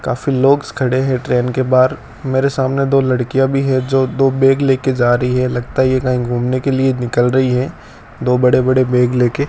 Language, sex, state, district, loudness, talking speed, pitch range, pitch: Hindi, male, Rajasthan, Bikaner, -15 LUFS, 225 wpm, 125-135 Hz, 130 Hz